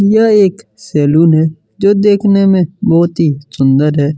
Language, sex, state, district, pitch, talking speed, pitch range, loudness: Hindi, male, Chhattisgarh, Kabirdham, 170 Hz, 160 wpm, 150-200 Hz, -11 LUFS